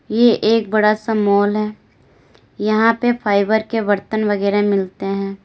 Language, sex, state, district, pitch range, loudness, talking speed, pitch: Hindi, female, Uttar Pradesh, Lalitpur, 195-220 Hz, -17 LUFS, 155 wpm, 210 Hz